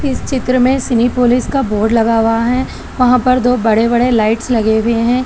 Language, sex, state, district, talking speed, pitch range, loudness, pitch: Hindi, female, Telangana, Hyderabad, 205 wpm, 230-255 Hz, -13 LUFS, 245 Hz